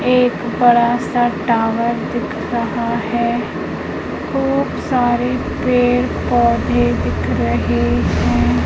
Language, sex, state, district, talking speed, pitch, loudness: Hindi, female, Madhya Pradesh, Umaria, 95 wpm, 235 Hz, -17 LUFS